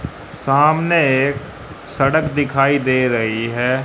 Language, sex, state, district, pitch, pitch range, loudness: Hindi, male, Haryana, Rohtak, 135 Hz, 125-145 Hz, -16 LUFS